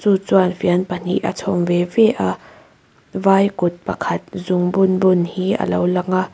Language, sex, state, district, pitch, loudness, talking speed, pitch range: Mizo, female, Mizoram, Aizawl, 185 Hz, -18 LUFS, 170 wpm, 180-195 Hz